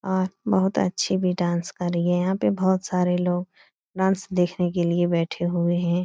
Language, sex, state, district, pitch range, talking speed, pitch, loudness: Hindi, female, Bihar, Supaul, 175-190 Hz, 220 wpm, 180 Hz, -23 LUFS